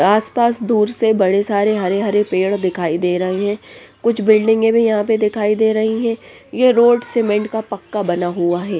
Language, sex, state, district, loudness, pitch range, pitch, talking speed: Hindi, female, Punjab, Pathankot, -16 LUFS, 195-225 Hz, 210 Hz, 200 wpm